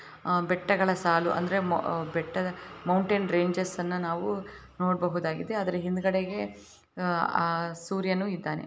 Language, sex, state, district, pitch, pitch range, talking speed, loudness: Kannada, female, Karnataka, Bellary, 180 Hz, 170-185 Hz, 130 wpm, -29 LUFS